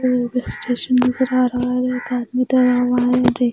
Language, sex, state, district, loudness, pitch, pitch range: Hindi, female, Maharashtra, Mumbai Suburban, -18 LUFS, 250 Hz, 245-255 Hz